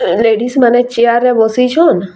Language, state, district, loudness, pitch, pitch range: Sambalpuri, Odisha, Sambalpur, -11 LUFS, 240 Hz, 225-250 Hz